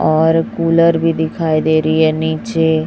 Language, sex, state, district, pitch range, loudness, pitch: Hindi, male, Chhattisgarh, Raipur, 135-165 Hz, -14 LUFS, 160 Hz